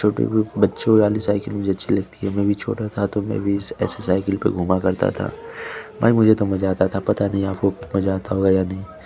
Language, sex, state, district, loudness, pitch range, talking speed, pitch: Hindi, male, Chandigarh, Chandigarh, -20 LUFS, 95-105 Hz, 250 wpm, 100 Hz